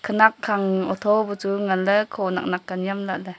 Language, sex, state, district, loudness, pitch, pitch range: Wancho, female, Arunachal Pradesh, Longding, -22 LUFS, 195 Hz, 190-210 Hz